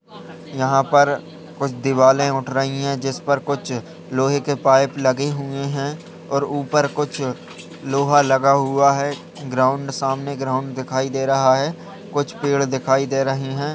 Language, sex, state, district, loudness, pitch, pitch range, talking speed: Hindi, male, Uttar Pradesh, Budaun, -20 LUFS, 140 Hz, 135-140 Hz, 155 wpm